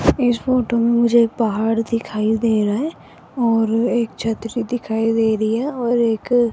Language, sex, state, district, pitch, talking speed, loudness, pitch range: Hindi, female, Rajasthan, Jaipur, 230 Hz, 185 wpm, -19 LUFS, 225-240 Hz